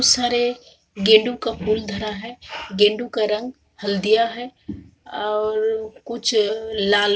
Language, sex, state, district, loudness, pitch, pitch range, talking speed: Hindi, female, Chhattisgarh, Kabirdham, -20 LUFS, 220 Hz, 210-235 Hz, 125 wpm